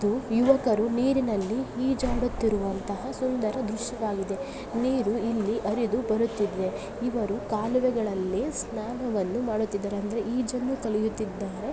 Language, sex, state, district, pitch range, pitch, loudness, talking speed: Kannada, female, Karnataka, Bellary, 210-245 Hz, 225 Hz, -28 LUFS, 85 wpm